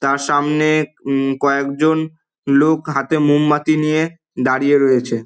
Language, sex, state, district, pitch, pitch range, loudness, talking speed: Bengali, male, West Bengal, Dakshin Dinajpur, 145 Hz, 140-155 Hz, -16 LUFS, 115 wpm